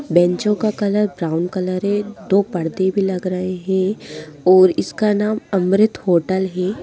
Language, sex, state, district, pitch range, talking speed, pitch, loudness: Hindi, female, Bihar, Madhepura, 180-205 Hz, 160 wpm, 190 Hz, -18 LUFS